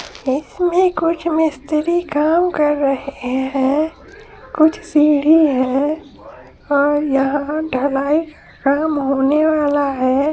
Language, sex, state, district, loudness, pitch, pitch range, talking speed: Hindi, female, Bihar, Supaul, -17 LUFS, 295 Hz, 275-315 Hz, 100 wpm